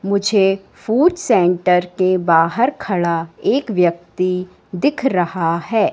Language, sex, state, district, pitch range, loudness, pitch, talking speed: Hindi, female, Madhya Pradesh, Katni, 175-215 Hz, -17 LUFS, 185 Hz, 110 wpm